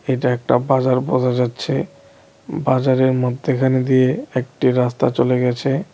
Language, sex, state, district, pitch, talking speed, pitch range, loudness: Bengali, male, Tripura, West Tripura, 130 Hz, 120 wpm, 125-130 Hz, -18 LUFS